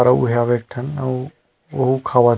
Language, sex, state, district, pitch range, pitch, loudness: Chhattisgarhi, male, Chhattisgarh, Rajnandgaon, 120-130 Hz, 125 Hz, -19 LUFS